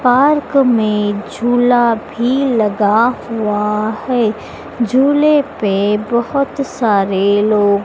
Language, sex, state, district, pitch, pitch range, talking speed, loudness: Hindi, female, Madhya Pradesh, Dhar, 230 Hz, 210-255 Hz, 90 wpm, -14 LUFS